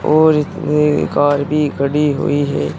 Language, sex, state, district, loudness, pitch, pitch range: Hindi, male, Uttar Pradesh, Saharanpur, -15 LUFS, 145 Hz, 140-150 Hz